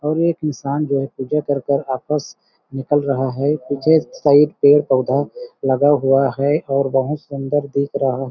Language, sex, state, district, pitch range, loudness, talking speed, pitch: Hindi, male, Chhattisgarh, Balrampur, 135-150 Hz, -18 LUFS, 160 wpm, 140 Hz